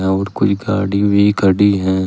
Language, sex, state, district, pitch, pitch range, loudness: Hindi, male, Uttar Pradesh, Shamli, 100 Hz, 95-100 Hz, -15 LUFS